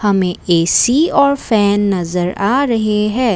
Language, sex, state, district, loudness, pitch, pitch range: Hindi, female, Assam, Kamrup Metropolitan, -14 LUFS, 210 Hz, 185-250 Hz